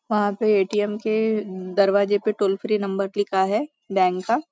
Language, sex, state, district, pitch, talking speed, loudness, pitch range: Hindi, female, Maharashtra, Nagpur, 205 Hz, 185 wpm, -22 LUFS, 195-215 Hz